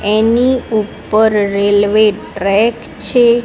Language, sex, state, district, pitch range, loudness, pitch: Gujarati, female, Gujarat, Gandhinagar, 205-235 Hz, -13 LUFS, 215 Hz